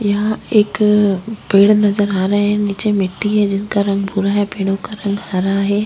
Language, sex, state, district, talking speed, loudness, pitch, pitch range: Hindi, female, Maharashtra, Aurangabad, 195 wpm, -16 LUFS, 205 Hz, 195-210 Hz